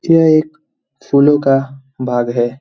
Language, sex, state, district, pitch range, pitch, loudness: Hindi, male, Bihar, Jamui, 130-155 Hz, 135 Hz, -13 LUFS